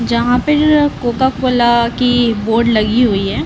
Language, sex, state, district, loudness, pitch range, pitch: Hindi, female, Bihar, Lakhisarai, -13 LUFS, 230-255 Hz, 240 Hz